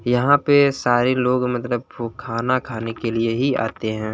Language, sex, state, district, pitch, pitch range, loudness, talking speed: Hindi, male, Uttar Pradesh, Gorakhpur, 120 Hz, 115-130 Hz, -20 LUFS, 190 wpm